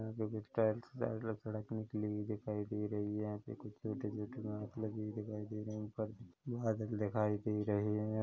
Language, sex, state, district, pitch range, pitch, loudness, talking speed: Hindi, male, Chhattisgarh, Korba, 105-110 Hz, 105 Hz, -40 LUFS, 210 wpm